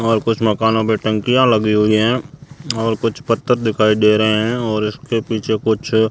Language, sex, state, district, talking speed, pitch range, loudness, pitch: Hindi, male, Rajasthan, Jaisalmer, 185 wpm, 110-115 Hz, -16 LUFS, 110 Hz